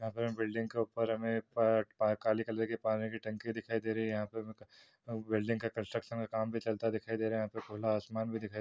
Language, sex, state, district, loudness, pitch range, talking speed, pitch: Hindi, male, Uttar Pradesh, Hamirpur, -36 LUFS, 110-115 Hz, 270 wpm, 110 Hz